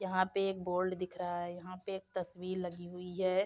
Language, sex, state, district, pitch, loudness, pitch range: Hindi, female, Uttar Pradesh, Jyotiba Phule Nagar, 185 Hz, -38 LUFS, 180-185 Hz